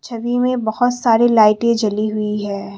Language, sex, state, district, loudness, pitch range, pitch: Hindi, female, Assam, Kamrup Metropolitan, -16 LUFS, 210-240 Hz, 225 Hz